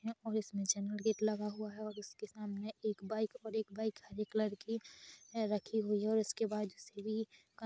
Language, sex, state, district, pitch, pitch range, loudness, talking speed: Hindi, female, Chhattisgarh, Rajnandgaon, 215 Hz, 210-220 Hz, -39 LUFS, 205 wpm